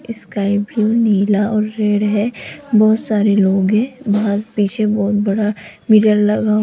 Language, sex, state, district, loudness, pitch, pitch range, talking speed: Hindi, female, Rajasthan, Jaipur, -16 LUFS, 210 Hz, 205-215 Hz, 155 wpm